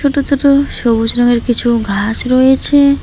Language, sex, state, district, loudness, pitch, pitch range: Bengali, female, West Bengal, Alipurduar, -12 LUFS, 255 Hz, 235-280 Hz